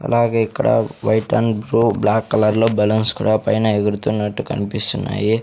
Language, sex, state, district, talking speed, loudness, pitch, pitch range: Telugu, male, Andhra Pradesh, Sri Satya Sai, 130 wpm, -18 LUFS, 110 Hz, 105-115 Hz